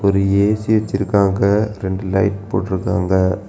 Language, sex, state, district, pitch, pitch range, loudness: Tamil, male, Tamil Nadu, Kanyakumari, 100 Hz, 95-100 Hz, -17 LUFS